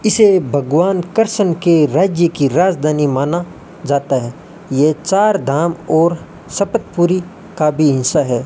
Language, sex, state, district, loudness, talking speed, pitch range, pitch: Hindi, male, Rajasthan, Bikaner, -15 LUFS, 135 wpm, 145-190 Hz, 170 Hz